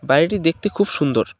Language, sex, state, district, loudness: Bengali, male, West Bengal, Cooch Behar, -19 LUFS